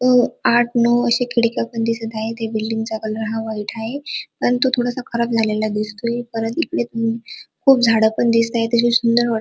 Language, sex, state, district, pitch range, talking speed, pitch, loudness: Marathi, female, Maharashtra, Dhule, 225-240 Hz, 190 wpm, 230 Hz, -19 LUFS